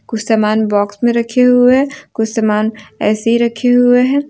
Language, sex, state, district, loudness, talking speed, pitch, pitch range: Hindi, female, Jharkhand, Deoghar, -13 LUFS, 195 wpm, 230 Hz, 220-245 Hz